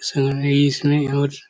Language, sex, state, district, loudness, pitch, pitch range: Hindi, male, Chhattisgarh, Korba, -19 LUFS, 140 Hz, 140-145 Hz